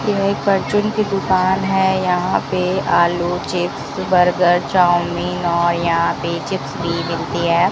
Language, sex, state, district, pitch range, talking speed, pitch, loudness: Hindi, female, Rajasthan, Bikaner, 170-190 Hz, 150 wpm, 180 Hz, -17 LUFS